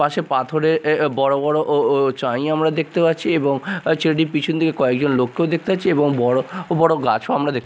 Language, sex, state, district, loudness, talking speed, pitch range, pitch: Bengali, male, Odisha, Nuapada, -19 LUFS, 220 wpm, 140-165 Hz, 155 Hz